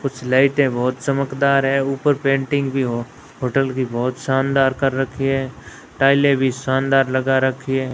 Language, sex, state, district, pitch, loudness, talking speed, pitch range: Hindi, male, Rajasthan, Bikaner, 135 Hz, -19 LUFS, 165 wpm, 130-135 Hz